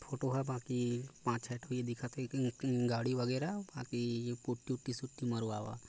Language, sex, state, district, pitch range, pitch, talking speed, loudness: Chhattisgarhi, male, Chhattisgarh, Korba, 120-130 Hz, 125 Hz, 165 wpm, -38 LUFS